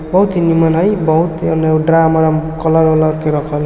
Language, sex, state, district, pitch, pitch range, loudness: Hindi, male, Bihar, East Champaran, 160 Hz, 155-165 Hz, -13 LUFS